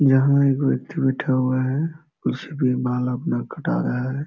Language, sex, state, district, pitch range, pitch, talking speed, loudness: Hindi, male, Bihar, Jamui, 125-140 Hz, 130 Hz, 180 wpm, -22 LUFS